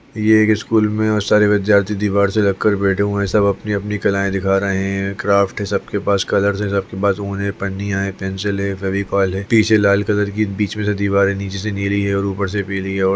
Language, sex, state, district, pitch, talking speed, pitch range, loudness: Hindi, male, Chhattisgarh, Bastar, 100 Hz, 245 wpm, 100-105 Hz, -17 LUFS